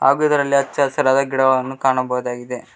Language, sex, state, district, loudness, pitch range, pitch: Kannada, male, Karnataka, Koppal, -18 LUFS, 130-140 Hz, 135 Hz